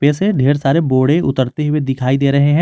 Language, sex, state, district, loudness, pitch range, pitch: Hindi, male, Jharkhand, Garhwa, -15 LUFS, 135-150 Hz, 140 Hz